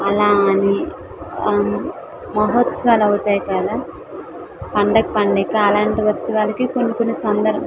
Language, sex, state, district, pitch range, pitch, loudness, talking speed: Telugu, female, Andhra Pradesh, Visakhapatnam, 205-220 Hz, 210 Hz, -17 LUFS, 110 wpm